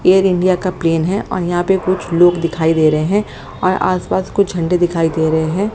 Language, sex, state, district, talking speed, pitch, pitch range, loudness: Hindi, female, Haryana, Jhajjar, 240 wpm, 175 Hz, 165-185 Hz, -15 LUFS